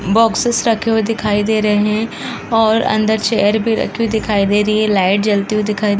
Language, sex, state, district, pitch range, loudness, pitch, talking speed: Hindi, female, Uttar Pradesh, Varanasi, 210-225 Hz, -15 LUFS, 215 Hz, 210 wpm